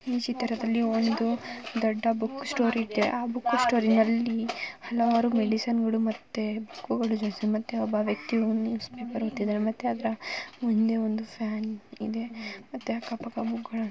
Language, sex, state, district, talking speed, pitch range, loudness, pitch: Kannada, female, Karnataka, Mysore, 130 wpm, 220-235 Hz, -28 LUFS, 230 Hz